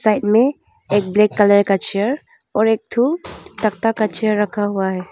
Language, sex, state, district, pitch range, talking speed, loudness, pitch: Hindi, female, Arunachal Pradesh, Longding, 200-225 Hz, 190 wpm, -18 LUFS, 210 Hz